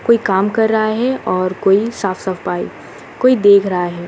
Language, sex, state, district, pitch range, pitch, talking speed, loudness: Hindi, female, Uttarakhand, Uttarkashi, 185-225 Hz, 200 Hz, 175 wpm, -15 LUFS